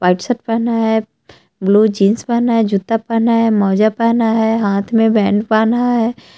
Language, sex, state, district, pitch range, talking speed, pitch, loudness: Hindi, female, Jharkhand, Palamu, 205-230 Hz, 180 wpm, 225 Hz, -14 LUFS